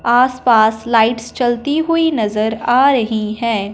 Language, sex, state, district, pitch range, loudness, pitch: Hindi, female, Punjab, Fazilka, 220-260 Hz, -15 LUFS, 235 Hz